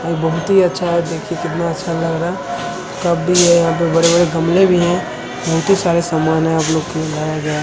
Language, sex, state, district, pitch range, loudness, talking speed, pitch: Hindi, male, Bihar, Gaya, 165-175 Hz, -16 LUFS, 235 wpm, 170 Hz